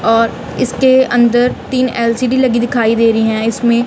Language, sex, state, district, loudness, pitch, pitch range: Hindi, female, Punjab, Kapurthala, -13 LUFS, 235 Hz, 230-255 Hz